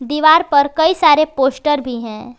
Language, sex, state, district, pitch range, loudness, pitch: Hindi, female, Jharkhand, Garhwa, 255-310 Hz, -13 LUFS, 290 Hz